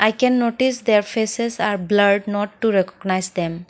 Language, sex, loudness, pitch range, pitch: English, female, -19 LUFS, 195-230 Hz, 210 Hz